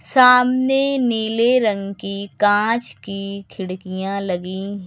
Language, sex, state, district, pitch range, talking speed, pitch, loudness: Hindi, female, Uttar Pradesh, Lucknow, 195-240 Hz, 100 wpm, 200 Hz, -19 LUFS